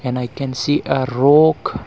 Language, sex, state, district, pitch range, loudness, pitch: English, male, Arunachal Pradesh, Longding, 125-145 Hz, -16 LUFS, 135 Hz